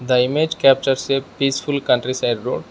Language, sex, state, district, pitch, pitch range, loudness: English, male, Arunachal Pradesh, Lower Dibang Valley, 135 Hz, 130-140 Hz, -18 LUFS